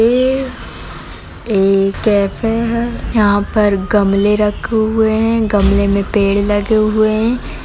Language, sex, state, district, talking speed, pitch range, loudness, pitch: Hindi, female, Bihar, Jamui, 125 wpm, 200-225 Hz, -14 LUFS, 210 Hz